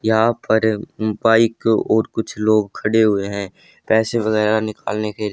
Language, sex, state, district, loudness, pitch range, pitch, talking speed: Hindi, male, Haryana, Rohtak, -18 LUFS, 105-110 Hz, 110 Hz, 145 wpm